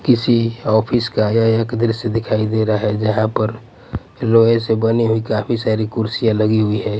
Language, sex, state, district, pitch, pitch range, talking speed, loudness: Hindi, male, Punjab, Pathankot, 110 Hz, 110-115 Hz, 190 wpm, -17 LUFS